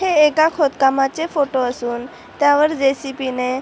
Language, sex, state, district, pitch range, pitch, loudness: Marathi, female, Maharashtra, Chandrapur, 260-300 Hz, 270 Hz, -17 LUFS